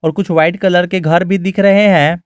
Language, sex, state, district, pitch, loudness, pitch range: Hindi, male, Jharkhand, Garhwa, 185 Hz, -11 LUFS, 165-195 Hz